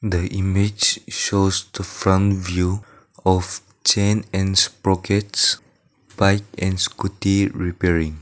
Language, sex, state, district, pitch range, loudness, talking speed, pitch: English, male, Nagaland, Dimapur, 95-100 Hz, -20 LUFS, 100 wpm, 95 Hz